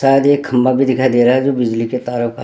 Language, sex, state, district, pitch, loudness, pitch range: Hindi, male, Uttarakhand, Tehri Garhwal, 130 Hz, -14 LUFS, 120-135 Hz